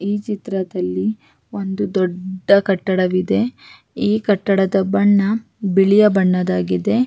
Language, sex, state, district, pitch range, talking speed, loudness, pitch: Kannada, female, Karnataka, Raichur, 185-205 Hz, 85 wpm, -18 LUFS, 195 Hz